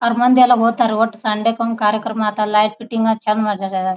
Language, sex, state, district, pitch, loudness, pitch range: Kannada, female, Karnataka, Bijapur, 225 Hz, -16 LUFS, 210-230 Hz